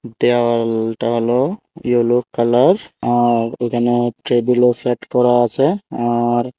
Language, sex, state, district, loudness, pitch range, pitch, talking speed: Bengali, male, Tripura, Unakoti, -16 LUFS, 120-125 Hz, 120 Hz, 100 wpm